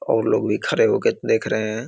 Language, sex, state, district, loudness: Hindi, male, Bihar, Muzaffarpur, -20 LUFS